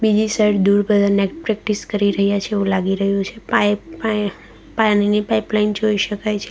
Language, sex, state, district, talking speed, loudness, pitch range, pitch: Gujarati, female, Gujarat, Valsad, 185 wpm, -18 LUFS, 200-215 Hz, 205 Hz